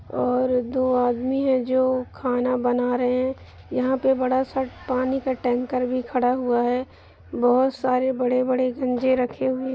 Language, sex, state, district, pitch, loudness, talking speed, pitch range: Hindi, female, Bihar, Begusarai, 255 Hz, -23 LUFS, 170 wpm, 250-260 Hz